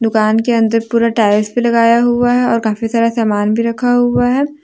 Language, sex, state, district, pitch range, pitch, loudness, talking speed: Hindi, female, Jharkhand, Deoghar, 225-245 Hz, 230 Hz, -13 LUFS, 220 wpm